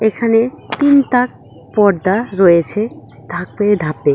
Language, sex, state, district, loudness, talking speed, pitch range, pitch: Bengali, female, West Bengal, Cooch Behar, -15 LUFS, 100 wpm, 170-230 Hz, 205 Hz